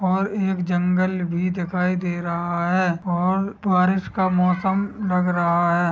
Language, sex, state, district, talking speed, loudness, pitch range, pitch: Hindi, male, Chhattisgarh, Sukma, 150 wpm, -21 LUFS, 175-185 Hz, 180 Hz